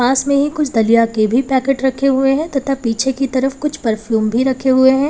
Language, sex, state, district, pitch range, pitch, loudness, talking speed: Hindi, female, Uttar Pradesh, Lalitpur, 235-275 Hz, 265 Hz, -15 LUFS, 235 wpm